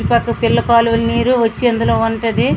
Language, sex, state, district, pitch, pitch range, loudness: Telugu, female, Andhra Pradesh, Srikakulam, 230 Hz, 225-235 Hz, -14 LUFS